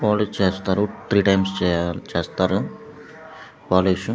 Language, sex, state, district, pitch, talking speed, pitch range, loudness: Telugu, male, Andhra Pradesh, Guntur, 95 Hz, 100 wpm, 95-100 Hz, -21 LUFS